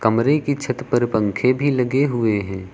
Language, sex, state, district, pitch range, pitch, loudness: Hindi, male, Uttar Pradesh, Lucknow, 110-135 Hz, 120 Hz, -20 LUFS